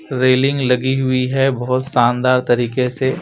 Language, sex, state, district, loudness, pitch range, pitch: Hindi, male, Chhattisgarh, Raipur, -16 LUFS, 125-130 Hz, 130 Hz